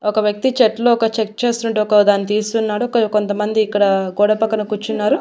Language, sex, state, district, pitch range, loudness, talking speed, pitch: Telugu, female, Andhra Pradesh, Annamaya, 210-225 Hz, -17 LUFS, 160 wpm, 215 Hz